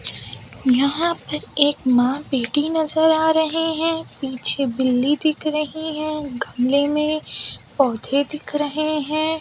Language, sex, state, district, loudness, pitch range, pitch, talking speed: Hindi, female, Maharashtra, Mumbai Suburban, -20 LUFS, 265-310 Hz, 295 Hz, 125 wpm